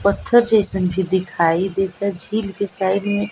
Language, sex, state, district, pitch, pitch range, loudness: Bhojpuri, female, Bihar, East Champaran, 195 Hz, 185-205 Hz, -17 LUFS